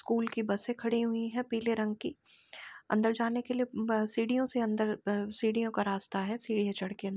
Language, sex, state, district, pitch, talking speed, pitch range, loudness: Hindi, female, Uttar Pradesh, Jalaun, 225 Hz, 220 wpm, 210-230 Hz, -32 LUFS